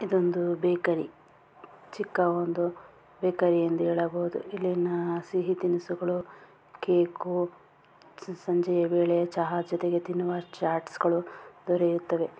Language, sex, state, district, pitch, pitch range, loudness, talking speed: Kannada, female, Karnataka, Bijapur, 175 Hz, 170-180 Hz, -28 LUFS, 85 wpm